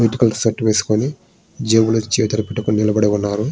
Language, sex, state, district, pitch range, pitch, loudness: Telugu, male, Andhra Pradesh, Srikakulam, 105-115 Hz, 110 Hz, -17 LUFS